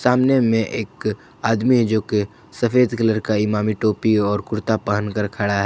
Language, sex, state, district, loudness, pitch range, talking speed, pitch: Hindi, male, Jharkhand, Ranchi, -20 LUFS, 105-115 Hz, 180 wpm, 110 Hz